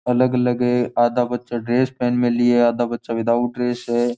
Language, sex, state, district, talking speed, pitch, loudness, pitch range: Marwari, male, Rajasthan, Nagaur, 200 wpm, 120 Hz, -19 LUFS, 120-125 Hz